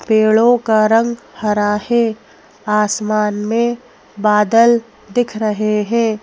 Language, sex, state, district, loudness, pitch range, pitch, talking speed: Hindi, female, Madhya Pradesh, Bhopal, -15 LUFS, 210-235 Hz, 215 Hz, 85 wpm